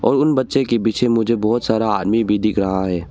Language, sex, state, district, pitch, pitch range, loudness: Hindi, male, Arunachal Pradesh, Longding, 110 Hz, 105-120 Hz, -18 LUFS